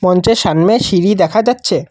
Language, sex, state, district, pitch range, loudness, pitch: Bengali, male, Assam, Kamrup Metropolitan, 180-230 Hz, -12 LUFS, 205 Hz